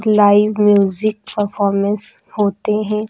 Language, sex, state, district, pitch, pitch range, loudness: Hindi, female, Uttar Pradesh, Lucknow, 210 Hz, 205-215 Hz, -16 LUFS